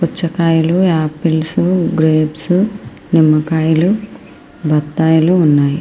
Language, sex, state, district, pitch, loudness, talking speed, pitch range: Telugu, female, Andhra Pradesh, Srikakulam, 160 Hz, -14 LUFS, 60 wpm, 155-175 Hz